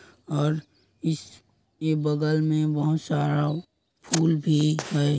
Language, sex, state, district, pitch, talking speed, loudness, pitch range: Hindi, male, Chhattisgarh, Korba, 155 Hz, 115 wpm, -25 LUFS, 145-155 Hz